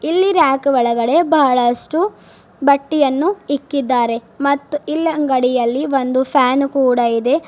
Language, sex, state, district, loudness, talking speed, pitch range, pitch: Kannada, female, Karnataka, Bidar, -16 LUFS, 105 wpm, 250-305 Hz, 275 Hz